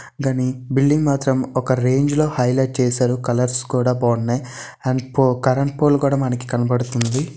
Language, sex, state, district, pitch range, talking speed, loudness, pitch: Telugu, male, Andhra Pradesh, Visakhapatnam, 125-140 Hz, 145 wpm, -19 LUFS, 130 Hz